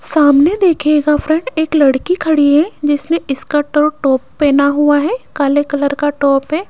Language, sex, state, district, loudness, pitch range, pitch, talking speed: Hindi, female, Rajasthan, Jaipur, -13 LUFS, 285-315 Hz, 295 Hz, 170 wpm